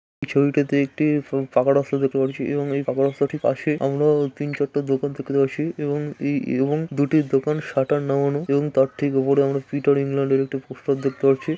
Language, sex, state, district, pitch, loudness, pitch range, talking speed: Bengali, male, West Bengal, Malda, 140 Hz, -22 LUFS, 135-145 Hz, 210 wpm